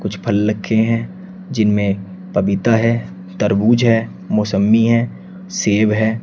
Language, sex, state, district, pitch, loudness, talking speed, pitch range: Hindi, male, Uttar Pradesh, Shamli, 110 Hz, -17 LUFS, 125 wpm, 100-115 Hz